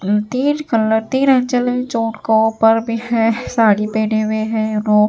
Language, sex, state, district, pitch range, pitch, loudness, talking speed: Hindi, female, Bihar, Katihar, 215-240 Hz, 225 Hz, -16 LUFS, 95 wpm